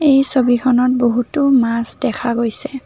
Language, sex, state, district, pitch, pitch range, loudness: Assamese, female, Assam, Kamrup Metropolitan, 250 Hz, 235-270 Hz, -15 LUFS